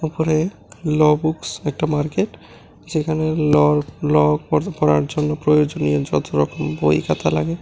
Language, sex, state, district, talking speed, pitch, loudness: Bengali, male, Tripura, West Tripura, 120 wpm, 150 Hz, -19 LUFS